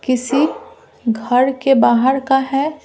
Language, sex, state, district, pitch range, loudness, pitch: Hindi, female, Bihar, Patna, 255-295 Hz, -16 LUFS, 270 Hz